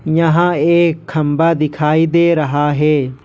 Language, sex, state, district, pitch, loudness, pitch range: Hindi, male, Jharkhand, Ranchi, 155 Hz, -14 LUFS, 150-165 Hz